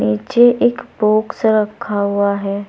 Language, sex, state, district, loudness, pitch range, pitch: Hindi, female, Uttar Pradesh, Saharanpur, -16 LUFS, 200-235 Hz, 210 Hz